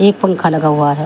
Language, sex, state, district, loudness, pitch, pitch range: Hindi, female, Uttar Pradesh, Shamli, -13 LUFS, 160 Hz, 150-190 Hz